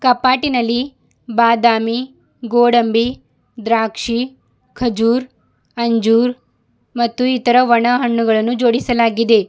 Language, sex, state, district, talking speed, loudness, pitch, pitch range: Kannada, female, Karnataka, Bidar, 70 wpm, -15 LUFS, 240 Hz, 230-250 Hz